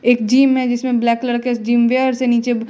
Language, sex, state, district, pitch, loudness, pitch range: Hindi, female, Bihar, West Champaran, 245 Hz, -16 LUFS, 235-255 Hz